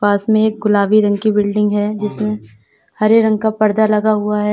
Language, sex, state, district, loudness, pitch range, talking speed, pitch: Hindi, female, Uttar Pradesh, Lalitpur, -15 LUFS, 205-215 Hz, 210 wpm, 210 Hz